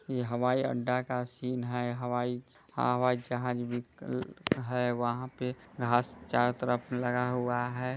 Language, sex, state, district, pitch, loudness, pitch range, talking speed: Hindi, male, Bihar, Muzaffarpur, 125 Hz, -32 LUFS, 120-125 Hz, 145 wpm